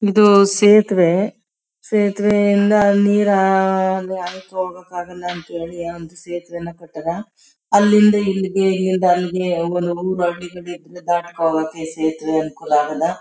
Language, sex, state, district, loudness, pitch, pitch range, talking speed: Kannada, female, Karnataka, Chamarajanagar, -17 LUFS, 180 Hz, 170-200 Hz, 100 wpm